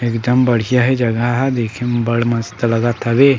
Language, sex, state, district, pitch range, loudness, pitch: Chhattisgarhi, male, Chhattisgarh, Sukma, 115-125 Hz, -16 LUFS, 120 Hz